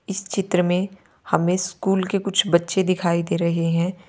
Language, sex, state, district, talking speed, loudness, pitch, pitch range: Hindi, female, Uttar Pradesh, Lalitpur, 175 wpm, -21 LUFS, 180 Hz, 170-195 Hz